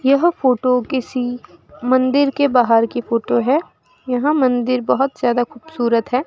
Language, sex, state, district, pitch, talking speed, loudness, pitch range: Hindi, female, Rajasthan, Bikaner, 250 Hz, 145 wpm, -17 LUFS, 245-270 Hz